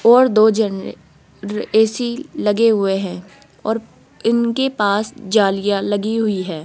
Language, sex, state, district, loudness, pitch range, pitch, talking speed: Hindi, female, Rajasthan, Jaipur, -18 LUFS, 200-230 Hz, 215 Hz, 125 wpm